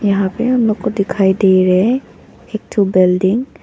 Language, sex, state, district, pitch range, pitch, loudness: Hindi, female, Arunachal Pradesh, Papum Pare, 190-230 Hz, 200 Hz, -14 LUFS